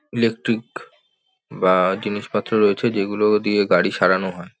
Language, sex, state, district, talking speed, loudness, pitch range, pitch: Bengali, male, West Bengal, North 24 Parganas, 115 wpm, -19 LUFS, 95-115 Hz, 105 Hz